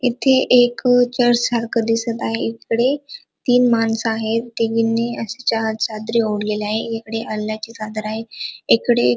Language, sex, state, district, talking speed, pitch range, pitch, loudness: Marathi, female, Maharashtra, Dhule, 145 wpm, 220-240 Hz, 230 Hz, -19 LUFS